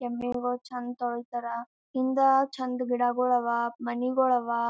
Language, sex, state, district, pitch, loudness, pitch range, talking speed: Kannada, male, Karnataka, Gulbarga, 245 Hz, -28 LUFS, 240-255 Hz, 130 wpm